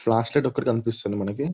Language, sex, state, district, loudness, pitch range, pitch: Telugu, male, Telangana, Nalgonda, -25 LUFS, 115-140 Hz, 115 Hz